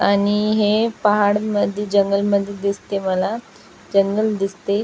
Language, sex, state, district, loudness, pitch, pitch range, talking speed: Marathi, female, Maharashtra, Aurangabad, -19 LUFS, 205 Hz, 200-210 Hz, 110 wpm